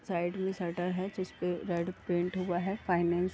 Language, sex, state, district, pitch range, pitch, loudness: Hindi, female, Uttar Pradesh, Deoria, 175-185 Hz, 180 Hz, -33 LUFS